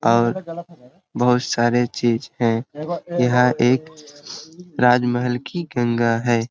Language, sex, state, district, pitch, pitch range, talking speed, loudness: Hindi, male, Jharkhand, Sahebganj, 125 Hz, 120-155 Hz, 100 wpm, -20 LUFS